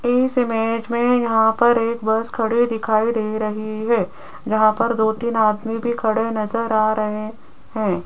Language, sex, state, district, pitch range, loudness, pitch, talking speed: Hindi, female, Rajasthan, Jaipur, 215-235 Hz, -19 LUFS, 225 Hz, 170 wpm